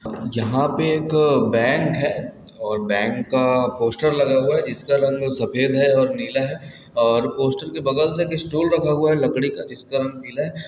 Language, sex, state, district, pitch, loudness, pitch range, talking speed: Hindi, male, Chhattisgarh, Balrampur, 135 Hz, -20 LUFS, 130-155 Hz, 195 wpm